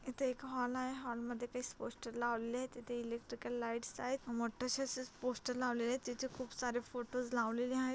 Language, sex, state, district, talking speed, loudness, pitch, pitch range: Marathi, female, Maharashtra, Chandrapur, 195 wpm, -41 LUFS, 245 Hz, 240-255 Hz